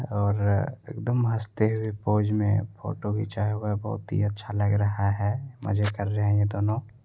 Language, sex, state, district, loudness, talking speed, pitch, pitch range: Hindi, male, Bihar, Begusarai, -27 LUFS, 195 wpm, 105 Hz, 105-110 Hz